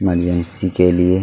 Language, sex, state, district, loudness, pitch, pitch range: Hindi, male, Chhattisgarh, Kabirdham, -17 LUFS, 90 Hz, 90-95 Hz